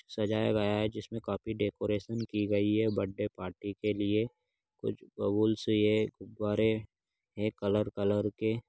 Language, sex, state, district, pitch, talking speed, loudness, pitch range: Hindi, male, Bihar, Darbhanga, 105 Hz, 145 wpm, -32 LUFS, 100-110 Hz